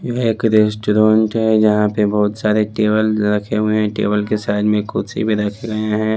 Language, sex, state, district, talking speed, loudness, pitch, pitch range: Hindi, male, Chhattisgarh, Raipur, 205 wpm, -16 LUFS, 105 Hz, 105-110 Hz